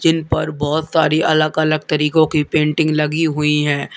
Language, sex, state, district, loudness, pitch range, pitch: Hindi, male, Uttar Pradesh, Lalitpur, -16 LUFS, 150-160 Hz, 155 Hz